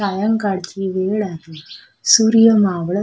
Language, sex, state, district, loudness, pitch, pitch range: Marathi, female, Maharashtra, Sindhudurg, -16 LUFS, 195 Hz, 185-215 Hz